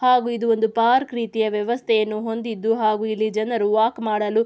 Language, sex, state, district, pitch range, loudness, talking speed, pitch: Kannada, female, Karnataka, Mysore, 215-235 Hz, -21 LUFS, 160 wpm, 225 Hz